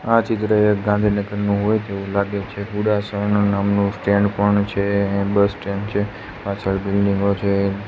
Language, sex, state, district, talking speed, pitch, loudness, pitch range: Gujarati, male, Gujarat, Gandhinagar, 135 wpm, 100 Hz, -20 LUFS, 100-105 Hz